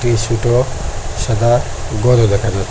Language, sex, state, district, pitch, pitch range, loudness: Bengali, male, Assam, Hailakandi, 115 Hz, 110-120 Hz, -16 LUFS